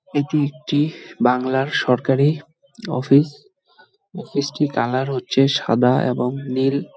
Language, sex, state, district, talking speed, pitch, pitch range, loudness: Bengali, male, West Bengal, Jalpaiguri, 110 wpm, 140 Hz, 130-155 Hz, -20 LUFS